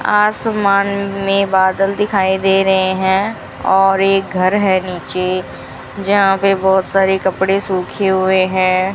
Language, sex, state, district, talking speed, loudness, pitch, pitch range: Hindi, female, Rajasthan, Bikaner, 135 wpm, -15 LUFS, 190 Hz, 190-195 Hz